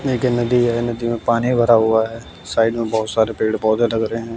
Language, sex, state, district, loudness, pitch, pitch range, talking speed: Hindi, male, Bihar, West Champaran, -18 LUFS, 115 Hz, 110-120 Hz, 260 wpm